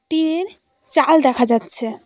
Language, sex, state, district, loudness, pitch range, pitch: Bengali, female, West Bengal, Cooch Behar, -17 LUFS, 235-320 Hz, 270 Hz